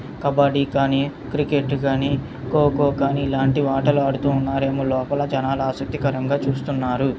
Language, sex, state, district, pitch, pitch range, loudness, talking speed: Telugu, male, Andhra Pradesh, Guntur, 140 Hz, 135-140 Hz, -21 LUFS, 65 wpm